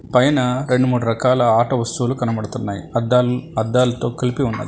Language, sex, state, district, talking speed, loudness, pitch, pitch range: Telugu, male, Telangana, Hyderabad, 140 wpm, -18 LUFS, 125 Hz, 115-125 Hz